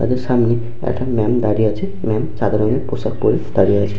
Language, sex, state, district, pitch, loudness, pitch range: Bengali, male, West Bengal, Paschim Medinipur, 110 Hz, -18 LUFS, 105-120 Hz